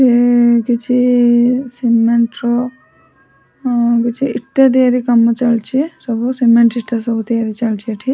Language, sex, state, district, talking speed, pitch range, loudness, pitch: Odia, female, Odisha, Sambalpur, 120 wpm, 235-250 Hz, -14 LUFS, 240 Hz